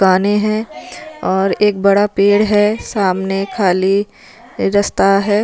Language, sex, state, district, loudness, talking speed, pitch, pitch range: Hindi, female, Punjab, Fazilka, -15 LUFS, 120 wpm, 200 Hz, 195-210 Hz